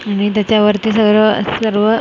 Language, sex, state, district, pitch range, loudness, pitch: Marathi, female, Maharashtra, Mumbai Suburban, 210-220 Hz, -13 LUFS, 215 Hz